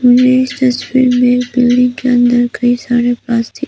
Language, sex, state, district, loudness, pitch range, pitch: Hindi, female, Arunachal Pradesh, Papum Pare, -12 LUFS, 245-255 Hz, 245 Hz